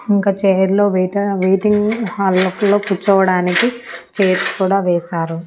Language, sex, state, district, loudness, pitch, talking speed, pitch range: Telugu, female, Andhra Pradesh, Annamaya, -15 LUFS, 195 Hz, 120 wpm, 185-205 Hz